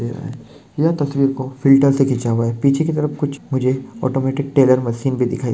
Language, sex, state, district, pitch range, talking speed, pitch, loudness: Hindi, male, Maharashtra, Sindhudurg, 130-140 Hz, 205 wpm, 135 Hz, -18 LUFS